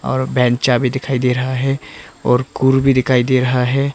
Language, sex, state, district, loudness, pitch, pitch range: Hindi, male, Arunachal Pradesh, Papum Pare, -16 LUFS, 130 Hz, 125-130 Hz